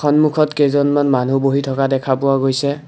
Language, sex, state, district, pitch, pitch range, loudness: Assamese, male, Assam, Kamrup Metropolitan, 140 Hz, 135-145 Hz, -16 LUFS